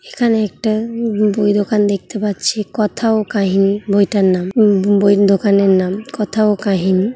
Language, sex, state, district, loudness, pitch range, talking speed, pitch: Bengali, female, West Bengal, Kolkata, -15 LUFS, 195-215 Hz, 160 wpm, 205 Hz